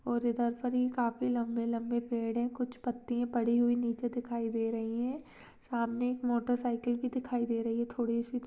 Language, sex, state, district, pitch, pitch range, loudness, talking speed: Hindi, female, Maharashtra, Chandrapur, 240 Hz, 235-245 Hz, -33 LUFS, 205 wpm